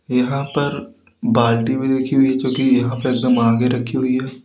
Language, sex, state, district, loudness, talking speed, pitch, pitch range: Hindi, male, Uttar Pradesh, Lalitpur, -18 LUFS, 215 wpm, 130 Hz, 125-135 Hz